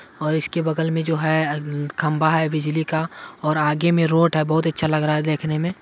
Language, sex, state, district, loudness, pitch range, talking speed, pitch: Hindi, male, Bihar, Madhepura, -21 LUFS, 155-160 Hz, 225 wpm, 155 Hz